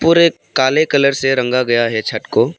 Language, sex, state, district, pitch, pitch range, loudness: Hindi, male, Arunachal Pradesh, Papum Pare, 135 Hz, 120-155 Hz, -15 LUFS